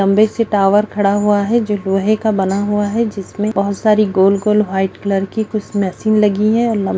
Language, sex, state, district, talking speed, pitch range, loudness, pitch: Hindi, female, Bihar, Jamui, 225 wpm, 195-215 Hz, -15 LUFS, 205 Hz